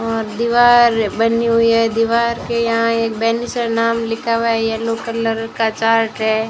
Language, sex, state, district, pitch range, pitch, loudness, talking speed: Hindi, female, Rajasthan, Bikaner, 225-230 Hz, 230 Hz, -16 LUFS, 175 wpm